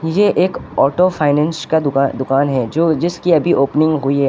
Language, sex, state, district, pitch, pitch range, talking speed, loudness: Hindi, male, Uttar Pradesh, Lucknow, 155 Hz, 140-170 Hz, 210 wpm, -15 LUFS